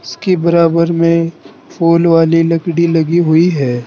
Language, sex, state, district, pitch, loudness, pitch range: Hindi, male, Uttar Pradesh, Saharanpur, 165 Hz, -12 LUFS, 165-170 Hz